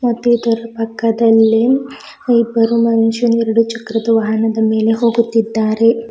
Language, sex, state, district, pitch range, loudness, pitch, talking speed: Kannada, female, Karnataka, Bidar, 225-235 Hz, -14 LUFS, 230 Hz, 100 wpm